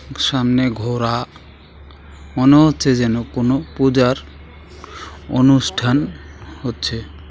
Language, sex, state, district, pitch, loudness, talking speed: Bengali, male, West Bengal, Alipurduar, 115 Hz, -17 LUFS, 75 wpm